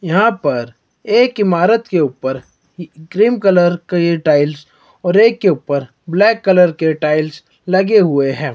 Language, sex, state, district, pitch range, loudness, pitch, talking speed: Hindi, male, Himachal Pradesh, Shimla, 150-195 Hz, -14 LUFS, 170 Hz, 155 wpm